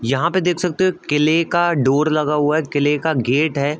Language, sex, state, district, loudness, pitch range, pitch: Hindi, male, Uttar Pradesh, Budaun, -18 LUFS, 145-170 Hz, 155 Hz